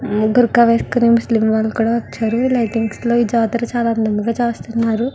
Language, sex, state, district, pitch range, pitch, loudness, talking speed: Telugu, female, Andhra Pradesh, Visakhapatnam, 225-235 Hz, 230 Hz, -16 LUFS, 150 wpm